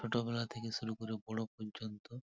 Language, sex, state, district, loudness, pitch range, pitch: Bengali, male, West Bengal, Purulia, -41 LUFS, 110-120 Hz, 110 Hz